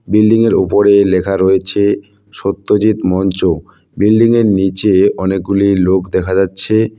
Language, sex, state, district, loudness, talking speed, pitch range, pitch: Bengali, male, West Bengal, Cooch Behar, -13 LUFS, 105 wpm, 95-105 Hz, 100 Hz